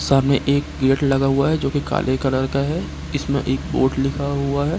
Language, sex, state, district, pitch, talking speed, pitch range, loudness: Hindi, male, Bihar, Gopalganj, 140 Hz, 225 wpm, 135-140 Hz, -20 LUFS